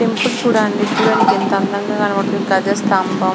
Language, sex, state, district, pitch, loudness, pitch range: Telugu, female, Andhra Pradesh, Srikakulam, 205 Hz, -16 LUFS, 195-220 Hz